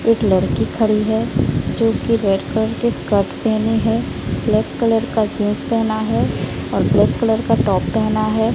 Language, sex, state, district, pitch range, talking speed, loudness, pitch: Hindi, female, Odisha, Sambalpur, 215-230 Hz, 175 wpm, -18 LUFS, 220 Hz